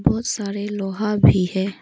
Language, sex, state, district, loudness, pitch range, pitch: Hindi, female, Arunachal Pradesh, Longding, -20 LUFS, 190-210 Hz, 200 Hz